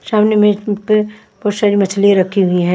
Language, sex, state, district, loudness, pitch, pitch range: Hindi, female, Maharashtra, Mumbai Suburban, -14 LUFS, 205 Hz, 195-210 Hz